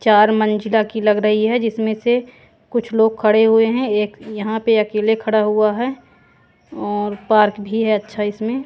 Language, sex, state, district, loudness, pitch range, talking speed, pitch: Hindi, female, Haryana, Jhajjar, -17 LUFS, 210-225 Hz, 180 wpm, 220 Hz